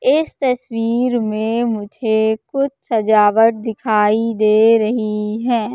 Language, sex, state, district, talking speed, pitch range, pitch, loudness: Hindi, female, Madhya Pradesh, Katni, 105 wpm, 215-240 Hz, 225 Hz, -16 LUFS